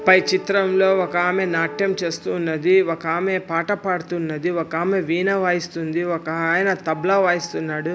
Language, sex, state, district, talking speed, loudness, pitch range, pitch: Telugu, female, Andhra Pradesh, Anantapur, 135 wpm, -20 LUFS, 165-190 Hz, 175 Hz